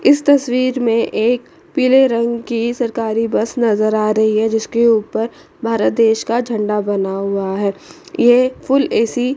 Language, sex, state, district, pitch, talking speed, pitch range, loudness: Hindi, female, Chandigarh, Chandigarh, 230 Hz, 165 wpm, 220-255 Hz, -16 LUFS